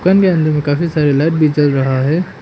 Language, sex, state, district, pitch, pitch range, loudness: Hindi, male, Arunachal Pradesh, Papum Pare, 155 Hz, 145-170 Hz, -14 LUFS